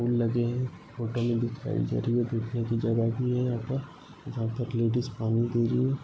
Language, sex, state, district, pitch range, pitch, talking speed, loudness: Marathi, male, Maharashtra, Sindhudurg, 115-125 Hz, 120 Hz, 230 wpm, -29 LUFS